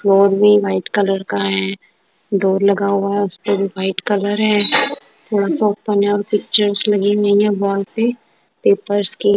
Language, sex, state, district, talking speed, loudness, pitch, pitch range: Hindi, female, Punjab, Kapurthala, 180 wpm, -16 LUFS, 200 Hz, 195-205 Hz